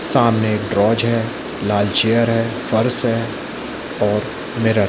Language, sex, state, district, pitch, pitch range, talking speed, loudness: Hindi, male, Chhattisgarh, Bilaspur, 115 Hz, 105-115 Hz, 145 wpm, -18 LUFS